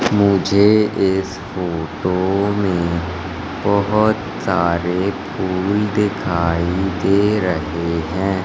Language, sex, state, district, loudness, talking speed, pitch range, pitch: Hindi, male, Madhya Pradesh, Katni, -18 LUFS, 80 wpm, 85-100 Hz, 95 Hz